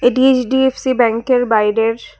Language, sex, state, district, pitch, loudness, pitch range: Bengali, female, Tripura, West Tripura, 245 Hz, -15 LUFS, 225-260 Hz